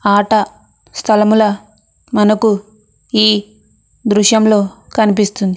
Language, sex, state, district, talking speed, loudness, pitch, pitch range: Telugu, female, Andhra Pradesh, Anantapur, 65 wpm, -13 LUFS, 210 Hz, 205-215 Hz